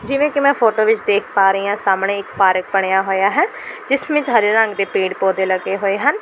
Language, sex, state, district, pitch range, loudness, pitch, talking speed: Punjabi, female, Delhi, New Delhi, 195-245 Hz, -16 LUFS, 200 Hz, 240 wpm